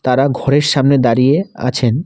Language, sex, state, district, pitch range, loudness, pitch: Bengali, male, West Bengal, Alipurduar, 125-140 Hz, -13 LUFS, 135 Hz